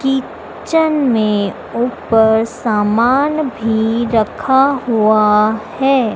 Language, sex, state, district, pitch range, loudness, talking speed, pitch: Hindi, female, Madhya Pradesh, Dhar, 220-265 Hz, -14 LUFS, 80 wpm, 230 Hz